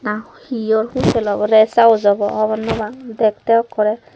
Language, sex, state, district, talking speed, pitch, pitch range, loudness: Chakma, female, Tripura, Dhalai, 145 wpm, 220 Hz, 210-230 Hz, -16 LUFS